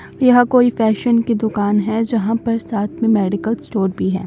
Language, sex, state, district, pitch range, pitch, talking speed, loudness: Hindi, male, Himachal Pradesh, Shimla, 205-230 Hz, 225 Hz, 195 wpm, -17 LUFS